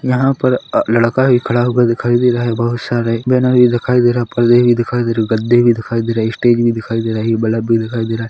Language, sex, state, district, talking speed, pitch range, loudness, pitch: Hindi, male, Chhattisgarh, Korba, 295 wpm, 115-120 Hz, -14 LUFS, 120 Hz